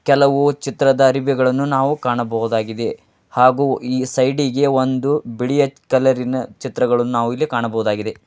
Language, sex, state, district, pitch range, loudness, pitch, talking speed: Kannada, male, Karnataka, Dharwad, 120-140 Hz, -18 LUFS, 130 Hz, 110 wpm